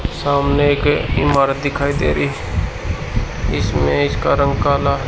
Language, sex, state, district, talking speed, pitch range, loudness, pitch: Hindi, male, Haryana, Charkhi Dadri, 120 wpm, 135-145 Hz, -17 LUFS, 140 Hz